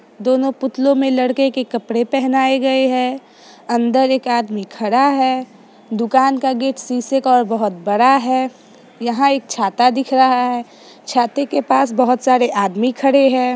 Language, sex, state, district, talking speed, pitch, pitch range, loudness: Hindi, female, Bihar, Sitamarhi, 165 wpm, 255 Hz, 240-265 Hz, -16 LUFS